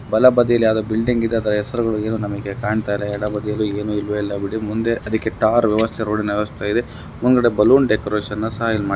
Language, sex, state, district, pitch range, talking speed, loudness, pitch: Kannada, male, Karnataka, Gulbarga, 105-115 Hz, 180 wpm, -19 LUFS, 110 Hz